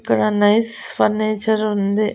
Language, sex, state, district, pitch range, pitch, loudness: Telugu, female, Andhra Pradesh, Annamaya, 205-215 Hz, 215 Hz, -18 LUFS